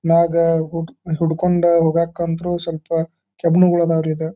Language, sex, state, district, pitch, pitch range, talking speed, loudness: Kannada, male, Karnataka, Dharwad, 165 Hz, 165-170 Hz, 125 wpm, -18 LUFS